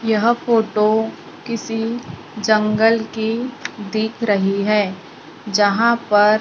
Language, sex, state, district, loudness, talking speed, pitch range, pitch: Hindi, female, Maharashtra, Gondia, -18 LUFS, 95 wpm, 210-230 Hz, 220 Hz